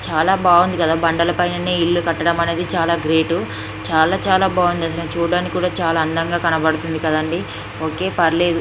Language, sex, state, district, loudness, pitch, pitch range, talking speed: Telugu, female, Andhra Pradesh, Srikakulam, -18 LUFS, 170 Hz, 160-175 Hz, 160 wpm